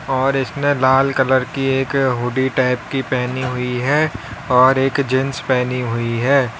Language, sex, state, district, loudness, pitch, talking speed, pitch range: Hindi, male, Uttar Pradesh, Lalitpur, -17 LUFS, 130 Hz, 165 wpm, 125-135 Hz